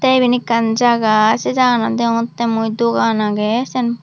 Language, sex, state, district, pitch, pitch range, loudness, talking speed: Chakma, female, Tripura, Dhalai, 230 Hz, 225-245 Hz, -15 LUFS, 150 wpm